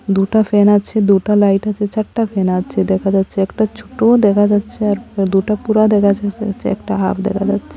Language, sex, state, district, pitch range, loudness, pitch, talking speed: Bengali, female, Assam, Hailakandi, 195-215 Hz, -15 LUFS, 205 Hz, 185 wpm